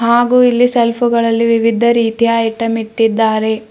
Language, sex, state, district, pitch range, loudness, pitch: Kannada, female, Karnataka, Bidar, 225-235 Hz, -13 LUFS, 230 Hz